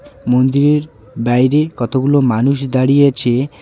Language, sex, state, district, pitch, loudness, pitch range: Bengali, male, West Bengal, Alipurduar, 130 Hz, -14 LUFS, 125-140 Hz